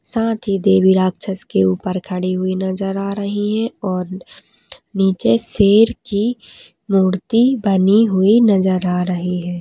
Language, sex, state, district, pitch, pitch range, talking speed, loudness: Hindi, female, West Bengal, Dakshin Dinajpur, 190 Hz, 185-205 Hz, 155 wpm, -17 LUFS